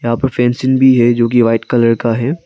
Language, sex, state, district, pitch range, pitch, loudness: Hindi, male, Arunachal Pradesh, Lower Dibang Valley, 115-130 Hz, 120 Hz, -12 LUFS